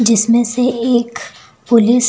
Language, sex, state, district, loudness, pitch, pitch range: Hindi, female, Uttar Pradesh, Lucknow, -13 LUFS, 240 Hz, 230-245 Hz